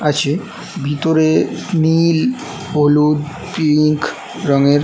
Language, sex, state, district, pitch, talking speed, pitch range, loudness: Bengali, male, West Bengal, North 24 Parganas, 155 Hz, 75 wpm, 150-165 Hz, -16 LUFS